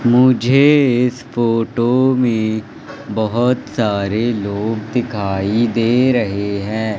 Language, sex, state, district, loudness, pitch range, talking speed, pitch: Hindi, male, Madhya Pradesh, Katni, -16 LUFS, 105-125 Hz, 95 wpm, 115 Hz